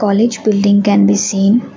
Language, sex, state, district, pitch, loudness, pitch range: English, female, Assam, Kamrup Metropolitan, 205 Hz, -12 LUFS, 200-215 Hz